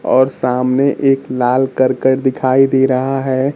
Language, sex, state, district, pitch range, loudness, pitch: Hindi, male, Bihar, Kaimur, 130-135 Hz, -14 LUFS, 130 Hz